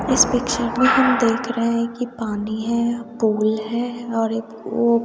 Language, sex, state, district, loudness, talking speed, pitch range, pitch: Hindi, female, Bihar, West Champaran, -20 LUFS, 180 wpm, 225-240 Hz, 235 Hz